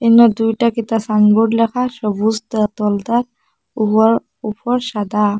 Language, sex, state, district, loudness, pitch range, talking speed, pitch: Bengali, male, Assam, Hailakandi, -16 LUFS, 210-235 Hz, 110 wpm, 225 Hz